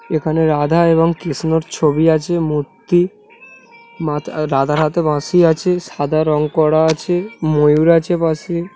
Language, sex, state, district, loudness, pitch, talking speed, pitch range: Bengali, male, West Bengal, Dakshin Dinajpur, -16 LUFS, 160 Hz, 130 wpm, 155-175 Hz